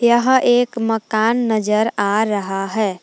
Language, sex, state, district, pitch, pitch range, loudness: Hindi, female, Jharkhand, Palamu, 220 Hz, 210-235 Hz, -17 LUFS